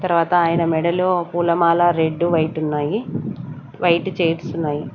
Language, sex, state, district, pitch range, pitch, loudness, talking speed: Telugu, female, Andhra Pradesh, Sri Satya Sai, 160-175 Hz, 170 Hz, -19 LUFS, 110 wpm